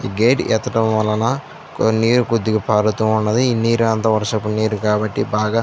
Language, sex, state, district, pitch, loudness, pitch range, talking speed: Telugu, male, Andhra Pradesh, Anantapur, 110 Hz, -17 LUFS, 105-115 Hz, 150 wpm